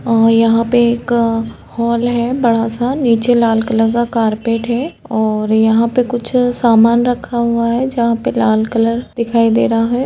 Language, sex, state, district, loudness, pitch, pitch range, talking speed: Hindi, female, Uttar Pradesh, Etah, -14 LUFS, 235 Hz, 225-240 Hz, 180 wpm